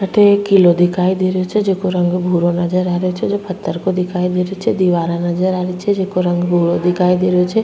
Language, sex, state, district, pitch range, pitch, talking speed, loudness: Rajasthani, female, Rajasthan, Churu, 175-190 Hz, 180 Hz, 260 wpm, -15 LUFS